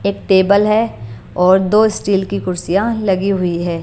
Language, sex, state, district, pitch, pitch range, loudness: Hindi, female, Punjab, Pathankot, 195 Hz, 180-205 Hz, -15 LUFS